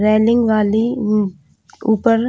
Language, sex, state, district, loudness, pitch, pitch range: Hindi, female, Chhattisgarh, Bilaspur, -16 LUFS, 220 Hz, 215-230 Hz